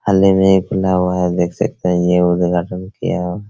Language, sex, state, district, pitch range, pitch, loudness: Hindi, male, Bihar, Araria, 90-95 Hz, 90 Hz, -16 LUFS